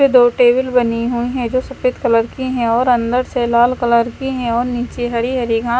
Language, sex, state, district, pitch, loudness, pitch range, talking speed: Hindi, female, Chandigarh, Chandigarh, 245 Hz, -16 LUFS, 235-255 Hz, 225 wpm